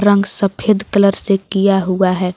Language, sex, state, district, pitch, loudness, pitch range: Hindi, female, Jharkhand, Garhwa, 195 Hz, -15 LUFS, 190-205 Hz